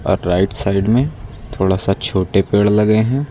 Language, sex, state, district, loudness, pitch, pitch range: Hindi, male, Uttar Pradesh, Lucknow, -16 LUFS, 105 Hz, 95-110 Hz